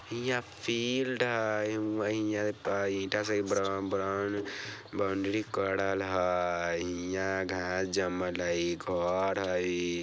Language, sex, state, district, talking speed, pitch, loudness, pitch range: Bajjika, male, Bihar, Vaishali, 100 wpm, 95 Hz, -32 LUFS, 90-105 Hz